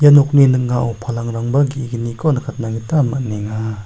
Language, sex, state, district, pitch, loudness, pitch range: Garo, male, Meghalaya, South Garo Hills, 120 Hz, -17 LUFS, 115-140 Hz